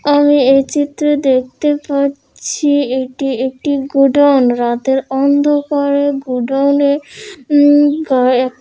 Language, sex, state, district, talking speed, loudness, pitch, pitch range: Bengali, female, West Bengal, Dakshin Dinajpur, 90 wpm, -13 LUFS, 280 Hz, 265-290 Hz